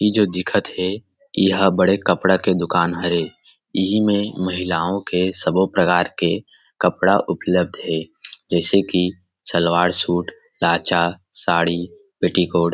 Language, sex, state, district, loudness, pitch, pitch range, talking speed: Chhattisgarhi, male, Chhattisgarh, Rajnandgaon, -19 LUFS, 90 Hz, 85-95 Hz, 130 wpm